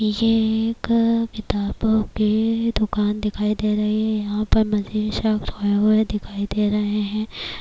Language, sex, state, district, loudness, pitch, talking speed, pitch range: Urdu, female, Bihar, Kishanganj, -21 LUFS, 215 Hz, 120 wpm, 210-220 Hz